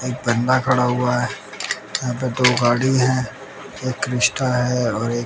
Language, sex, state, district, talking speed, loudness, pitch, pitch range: Hindi, male, Bihar, West Champaran, 170 wpm, -20 LUFS, 125 Hz, 125-130 Hz